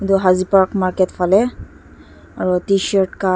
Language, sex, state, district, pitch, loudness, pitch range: Nagamese, female, Nagaland, Dimapur, 190 Hz, -16 LUFS, 185-195 Hz